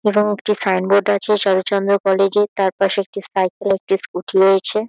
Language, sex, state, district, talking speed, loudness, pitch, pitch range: Bengali, female, West Bengal, Kolkata, 185 wpm, -17 LUFS, 195 Hz, 195-205 Hz